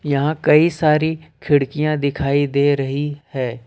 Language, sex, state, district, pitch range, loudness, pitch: Hindi, male, Jharkhand, Ranchi, 140-155 Hz, -18 LUFS, 145 Hz